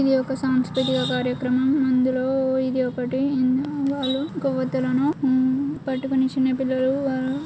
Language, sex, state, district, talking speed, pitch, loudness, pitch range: Telugu, female, Telangana, Karimnagar, 105 wpm, 260 Hz, -22 LUFS, 255-270 Hz